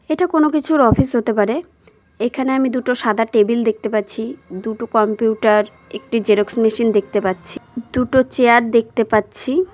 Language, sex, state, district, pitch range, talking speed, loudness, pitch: Bengali, female, West Bengal, Cooch Behar, 215-255 Hz, 150 wpm, -17 LUFS, 230 Hz